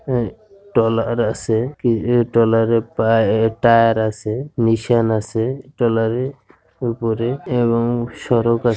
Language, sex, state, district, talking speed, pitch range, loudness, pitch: Bengali, male, West Bengal, Jhargram, 110 wpm, 115-120 Hz, -18 LUFS, 115 Hz